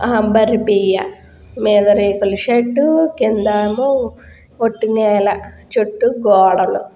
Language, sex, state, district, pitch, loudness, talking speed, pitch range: Telugu, female, Andhra Pradesh, Guntur, 215 Hz, -15 LUFS, 95 wpm, 205-240 Hz